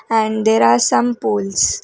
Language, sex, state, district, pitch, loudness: English, female, Karnataka, Bangalore, 195 Hz, -15 LUFS